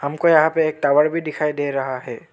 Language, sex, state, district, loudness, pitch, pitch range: Hindi, male, Arunachal Pradesh, Lower Dibang Valley, -19 LUFS, 150 Hz, 140-155 Hz